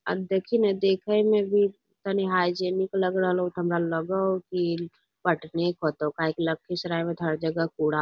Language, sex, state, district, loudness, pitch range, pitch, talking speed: Magahi, female, Bihar, Lakhisarai, -26 LUFS, 165-190 Hz, 180 Hz, 195 wpm